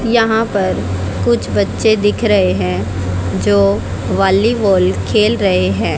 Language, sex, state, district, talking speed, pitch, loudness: Hindi, female, Haryana, Jhajjar, 120 wpm, 100 Hz, -14 LUFS